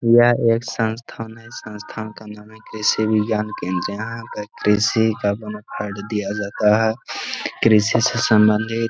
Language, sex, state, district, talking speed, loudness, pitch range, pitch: Hindi, male, Bihar, Gaya, 150 wpm, -20 LUFS, 105-115 Hz, 110 Hz